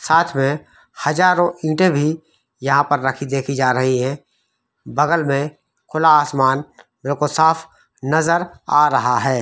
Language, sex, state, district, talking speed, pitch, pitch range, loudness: Hindi, male, Jharkhand, Sahebganj, 135 wpm, 145 Hz, 135-160 Hz, -18 LUFS